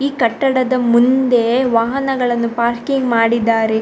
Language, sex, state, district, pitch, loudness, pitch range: Kannada, female, Karnataka, Dakshina Kannada, 240 Hz, -15 LUFS, 235-260 Hz